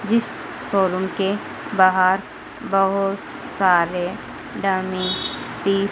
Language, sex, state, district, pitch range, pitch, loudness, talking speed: Hindi, female, Madhya Pradesh, Dhar, 185-200 Hz, 195 Hz, -21 LUFS, 90 wpm